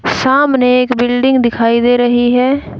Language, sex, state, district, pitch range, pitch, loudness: Hindi, female, Haryana, Rohtak, 240-260 Hz, 250 Hz, -12 LUFS